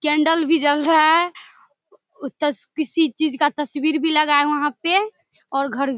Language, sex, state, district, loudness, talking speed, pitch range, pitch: Maithili, female, Bihar, Samastipur, -19 LUFS, 190 wpm, 290-320 Hz, 300 Hz